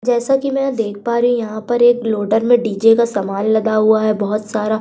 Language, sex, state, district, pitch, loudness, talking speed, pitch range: Hindi, female, Uttar Pradesh, Budaun, 220 Hz, -16 LUFS, 260 wpm, 215-240 Hz